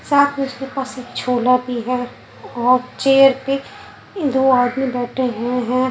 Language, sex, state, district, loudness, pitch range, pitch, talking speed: Hindi, female, Punjab, Pathankot, -18 LUFS, 250-270 Hz, 255 Hz, 160 wpm